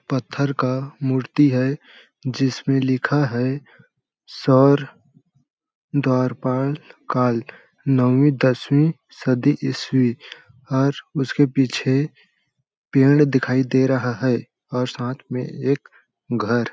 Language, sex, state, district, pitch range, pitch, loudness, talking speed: Hindi, male, Chhattisgarh, Balrampur, 125-140 Hz, 135 Hz, -20 LUFS, 95 wpm